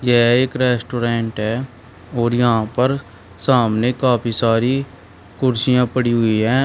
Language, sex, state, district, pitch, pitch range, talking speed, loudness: Hindi, male, Uttar Pradesh, Shamli, 120 Hz, 115-125 Hz, 125 wpm, -18 LUFS